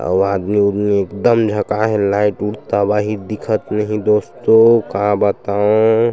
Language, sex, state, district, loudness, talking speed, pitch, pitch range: Chhattisgarhi, male, Chhattisgarh, Sukma, -15 LUFS, 135 wpm, 105 Hz, 100-110 Hz